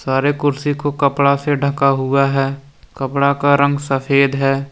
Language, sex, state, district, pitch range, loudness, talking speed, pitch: Hindi, male, Jharkhand, Deoghar, 135-145 Hz, -16 LUFS, 165 wpm, 140 Hz